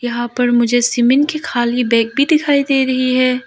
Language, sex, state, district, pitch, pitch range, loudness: Hindi, female, Arunachal Pradesh, Lower Dibang Valley, 250 Hz, 240-275 Hz, -15 LUFS